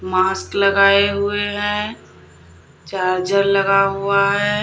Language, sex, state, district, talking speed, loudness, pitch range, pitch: Hindi, female, Uttar Pradesh, Lalitpur, 105 wpm, -17 LUFS, 185-200 Hz, 195 Hz